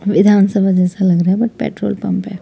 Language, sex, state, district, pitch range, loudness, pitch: Hindi, female, Delhi, New Delhi, 190-205 Hz, -14 LUFS, 195 Hz